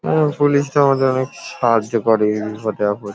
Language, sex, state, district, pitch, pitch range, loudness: Bengali, male, West Bengal, Paschim Medinipur, 115 Hz, 105-140 Hz, -17 LUFS